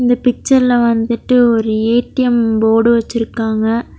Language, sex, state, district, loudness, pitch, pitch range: Tamil, female, Tamil Nadu, Nilgiris, -13 LUFS, 235 Hz, 225-245 Hz